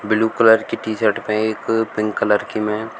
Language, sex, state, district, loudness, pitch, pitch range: Hindi, male, Uttar Pradesh, Shamli, -18 LUFS, 110 Hz, 105-110 Hz